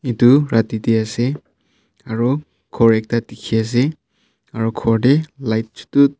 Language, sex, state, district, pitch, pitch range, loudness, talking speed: Nagamese, male, Nagaland, Kohima, 115 Hz, 110-135 Hz, -18 LUFS, 135 wpm